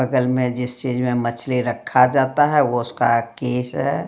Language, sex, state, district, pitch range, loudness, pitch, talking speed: Hindi, female, Bihar, Patna, 120-130 Hz, -19 LUFS, 125 Hz, 190 wpm